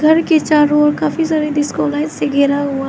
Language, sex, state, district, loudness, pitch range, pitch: Hindi, female, Arunachal Pradesh, Lower Dibang Valley, -15 LUFS, 290-310 Hz, 295 Hz